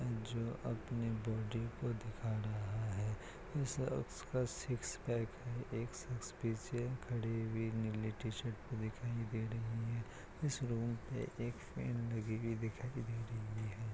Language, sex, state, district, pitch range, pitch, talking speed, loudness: Hindi, male, Bihar, Kishanganj, 110-120 Hz, 115 Hz, 145 wpm, -42 LUFS